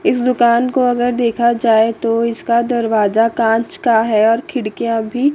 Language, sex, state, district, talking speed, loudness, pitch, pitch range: Hindi, female, Chandigarh, Chandigarh, 170 wpm, -15 LUFS, 235 Hz, 225-245 Hz